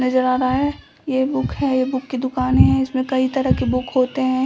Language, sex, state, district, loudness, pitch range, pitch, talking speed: Hindi, female, Bihar, Samastipur, -19 LUFS, 255-265 Hz, 260 Hz, 255 wpm